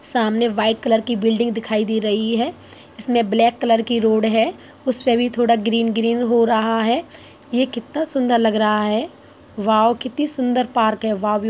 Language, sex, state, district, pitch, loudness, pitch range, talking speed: Hindi, female, Bihar, Muzaffarpur, 230 Hz, -19 LUFS, 220-245 Hz, 195 wpm